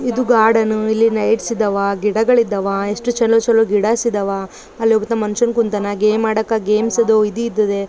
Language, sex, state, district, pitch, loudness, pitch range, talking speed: Kannada, female, Karnataka, Raichur, 220 Hz, -16 LUFS, 210-230 Hz, 145 wpm